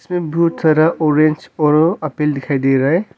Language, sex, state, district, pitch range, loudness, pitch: Hindi, male, Arunachal Pradesh, Longding, 150-170 Hz, -15 LUFS, 155 Hz